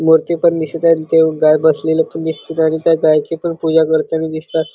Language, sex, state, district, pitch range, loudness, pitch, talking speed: Marathi, male, Maharashtra, Chandrapur, 160-165 Hz, -14 LUFS, 160 Hz, 200 wpm